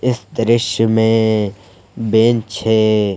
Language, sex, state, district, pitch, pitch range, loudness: Hindi, male, Jharkhand, Palamu, 110 Hz, 105-115 Hz, -15 LUFS